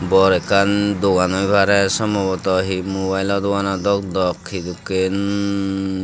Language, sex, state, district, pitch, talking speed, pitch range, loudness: Chakma, male, Tripura, Dhalai, 95 Hz, 120 wpm, 95-100 Hz, -18 LUFS